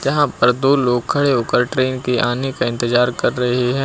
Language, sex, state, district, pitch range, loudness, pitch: Hindi, male, Uttar Pradesh, Lucknow, 125-135 Hz, -17 LUFS, 125 Hz